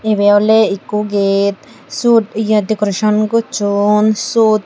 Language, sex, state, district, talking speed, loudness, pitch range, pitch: Chakma, female, Tripura, Dhalai, 115 wpm, -13 LUFS, 205-220 Hz, 215 Hz